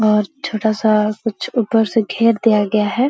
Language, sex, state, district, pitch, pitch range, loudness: Hindi, female, Bihar, Araria, 215 Hz, 210-225 Hz, -17 LUFS